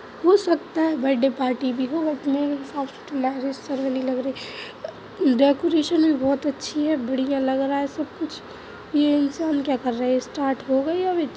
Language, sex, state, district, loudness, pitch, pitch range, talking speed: Hindi, female, Bihar, Begusarai, -23 LUFS, 280 Hz, 265-310 Hz, 215 wpm